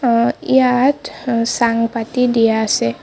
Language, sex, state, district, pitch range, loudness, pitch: Assamese, female, Assam, Sonitpur, 230-255 Hz, -16 LUFS, 235 Hz